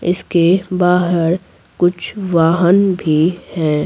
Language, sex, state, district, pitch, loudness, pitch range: Hindi, female, Bihar, Patna, 175 Hz, -15 LUFS, 170-185 Hz